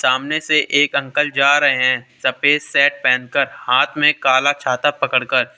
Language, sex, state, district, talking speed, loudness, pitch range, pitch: Hindi, male, Uttar Pradesh, Lalitpur, 160 wpm, -16 LUFS, 130-150 Hz, 145 Hz